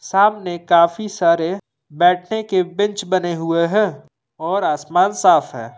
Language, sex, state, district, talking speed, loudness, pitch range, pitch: Hindi, male, Jharkhand, Ranchi, 135 wpm, -17 LUFS, 170-205 Hz, 180 Hz